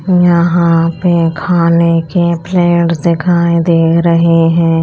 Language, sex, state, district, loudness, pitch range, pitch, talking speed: Hindi, female, Chhattisgarh, Raipur, -11 LUFS, 165-175 Hz, 170 Hz, 110 wpm